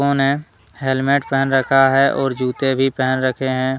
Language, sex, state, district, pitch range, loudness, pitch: Hindi, male, Jharkhand, Deoghar, 130-135 Hz, -17 LUFS, 135 Hz